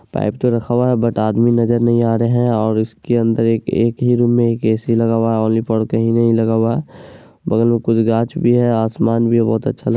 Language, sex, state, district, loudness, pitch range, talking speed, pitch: Hindi, male, Bihar, Araria, -16 LUFS, 115-120 Hz, 230 wpm, 115 Hz